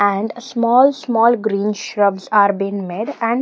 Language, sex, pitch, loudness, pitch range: English, female, 220 Hz, -17 LUFS, 200-240 Hz